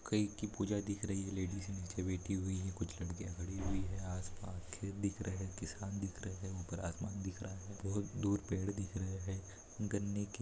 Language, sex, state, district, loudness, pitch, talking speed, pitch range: Hindi, male, Maharashtra, Nagpur, -42 LUFS, 95 Hz, 215 wpm, 95-100 Hz